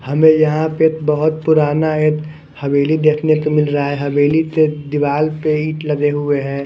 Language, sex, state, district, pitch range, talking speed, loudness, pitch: Hindi, male, Chandigarh, Chandigarh, 145-155 Hz, 180 wpm, -15 LUFS, 150 Hz